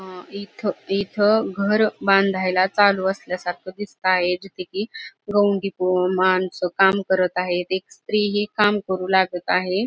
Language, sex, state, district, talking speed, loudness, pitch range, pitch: Marathi, female, Maharashtra, Aurangabad, 135 wpm, -21 LUFS, 185-205 Hz, 190 Hz